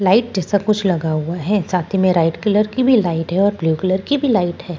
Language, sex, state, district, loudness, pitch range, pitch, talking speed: Hindi, female, Bihar, Katihar, -17 LUFS, 170-210 Hz, 190 Hz, 265 wpm